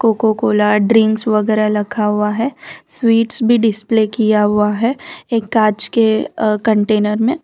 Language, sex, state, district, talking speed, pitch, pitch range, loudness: Hindi, female, Gujarat, Valsad, 145 wpm, 220 Hz, 210-230 Hz, -15 LUFS